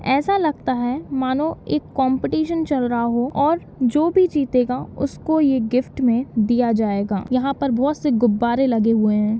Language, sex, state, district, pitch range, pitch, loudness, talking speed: Hindi, female, Bihar, East Champaran, 235-285 Hz, 255 Hz, -20 LUFS, 170 wpm